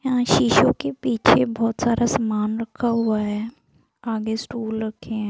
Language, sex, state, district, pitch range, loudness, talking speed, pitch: Hindi, female, Bihar, Gaya, 220-235 Hz, -21 LUFS, 145 wpm, 225 Hz